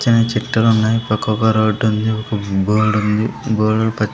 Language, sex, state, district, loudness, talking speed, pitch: Telugu, male, Andhra Pradesh, Sri Satya Sai, -16 LUFS, 160 wpm, 110 Hz